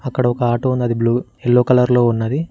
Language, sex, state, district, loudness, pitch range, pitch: Telugu, male, Telangana, Mahabubabad, -16 LUFS, 120-125 Hz, 125 Hz